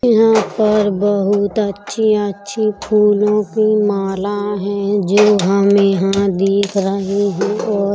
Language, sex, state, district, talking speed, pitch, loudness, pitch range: Hindi, female, Uttar Pradesh, Hamirpur, 105 wpm, 205 Hz, -15 LUFS, 200-210 Hz